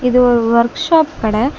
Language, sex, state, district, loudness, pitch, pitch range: Tamil, female, Tamil Nadu, Kanyakumari, -14 LUFS, 250 Hz, 235-285 Hz